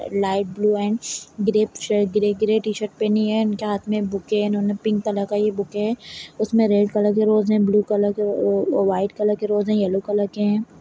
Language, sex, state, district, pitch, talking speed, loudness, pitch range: Kumaoni, female, Uttarakhand, Uttarkashi, 210 Hz, 235 wpm, -21 LUFS, 205-215 Hz